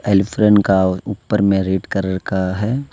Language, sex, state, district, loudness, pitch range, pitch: Hindi, male, Jharkhand, Deoghar, -17 LUFS, 95-105 Hz, 100 Hz